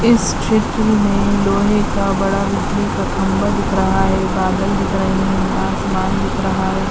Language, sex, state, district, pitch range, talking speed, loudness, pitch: Hindi, female, Uttar Pradesh, Hamirpur, 205-220 Hz, 175 wpm, -17 LUFS, 210 Hz